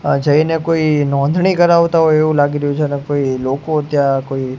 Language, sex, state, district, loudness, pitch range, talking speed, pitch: Gujarati, male, Gujarat, Gandhinagar, -14 LUFS, 140-160 Hz, 195 wpm, 145 Hz